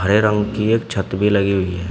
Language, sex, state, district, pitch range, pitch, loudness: Hindi, male, Uttar Pradesh, Shamli, 95-105 Hz, 100 Hz, -18 LUFS